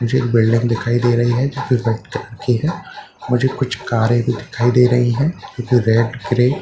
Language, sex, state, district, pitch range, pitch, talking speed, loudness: Hindi, male, Bihar, Katihar, 120-125 Hz, 120 Hz, 235 wpm, -17 LUFS